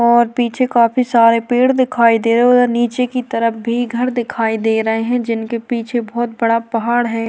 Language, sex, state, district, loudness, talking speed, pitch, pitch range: Hindi, female, Uttarakhand, Tehri Garhwal, -15 LUFS, 200 wpm, 235 Hz, 230-245 Hz